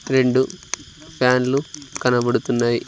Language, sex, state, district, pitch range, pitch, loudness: Telugu, male, Andhra Pradesh, Sri Satya Sai, 125-140 Hz, 130 Hz, -20 LUFS